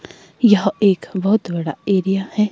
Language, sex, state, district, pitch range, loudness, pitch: Hindi, female, Himachal Pradesh, Shimla, 185-210 Hz, -18 LUFS, 195 Hz